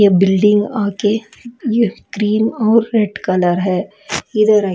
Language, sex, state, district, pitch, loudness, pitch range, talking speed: Hindi, female, Bihar, Patna, 210 Hz, -16 LUFS, 195-225 Hz, 140 wpm